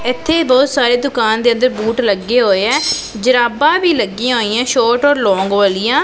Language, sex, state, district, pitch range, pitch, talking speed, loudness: Punjabi, female, Punjab, Pathankot, 220-255 Hz, 240 Hz, 180 wpm, -13 LUFS